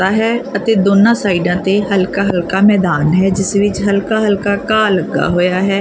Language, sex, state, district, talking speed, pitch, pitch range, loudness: Punjabi, female, Punjab, Kapurthala, 185 wpm, 200 Hz, 185-205 Hz, -13 LUFS